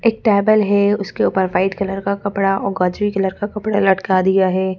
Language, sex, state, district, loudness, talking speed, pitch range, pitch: Hindi, female, Madhya Pradesh, Bhopal, -17 LUFS, 190 wpm, 190-205 Hz, 195 Hz